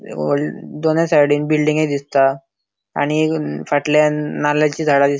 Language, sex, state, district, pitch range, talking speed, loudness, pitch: Konkani, male, Goa, North and South Goa, 140-150 Hz, 125 wpm, -17 LUFS, 145 Hz